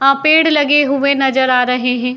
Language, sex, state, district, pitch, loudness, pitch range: Hindi, female, Uttar Pradesh, Jyotiba Phule Nagar, 275 Hz, -12 LUFS, 250-290 Hz